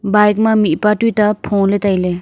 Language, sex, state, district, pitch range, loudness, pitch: Wancho, female, Arunachal Pradesh, Longding, 195-210 Hz, -14 LUFS, 210 Hz